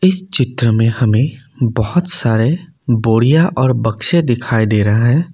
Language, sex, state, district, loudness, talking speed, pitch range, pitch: Hindi, male, Assam, Kamrup Metropolitan, -14 LUFS, 135 wpm, 115-160 Hz, 125 Hz